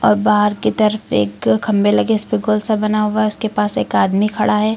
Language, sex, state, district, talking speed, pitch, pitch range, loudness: Hindi, female, Uttar Pradesh, Lucknow, 240 wpm, 210 Hz, 210-215 Hz, -16 LUFS